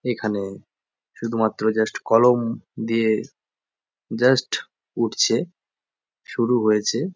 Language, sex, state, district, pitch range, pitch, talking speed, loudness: Bengali, male, West Bengal, Jhargram, 110-120 Hz, 115 Hz, 85 wpm, -21 LUFS